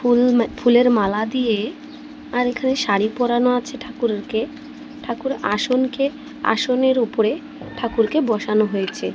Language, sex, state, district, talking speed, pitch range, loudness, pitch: Bengali, female, Odisha, Malkangiri, 120 wpm, 220-275 Hz, -20 LUFS, 245 Hz